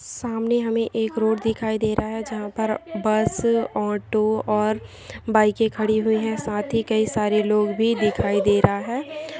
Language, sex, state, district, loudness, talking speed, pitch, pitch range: Hindi, female, Uttarakhand, Uttarkashi, -22 LUFS, 180 wpm, 220 Hz, 215-225 Hz